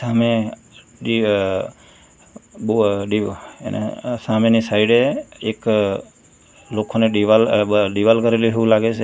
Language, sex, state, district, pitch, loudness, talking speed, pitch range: Gujarati, male, Gujarat, Valsad, 110 Hz, -18 LUFS, 135 wpm, 105-115 Hz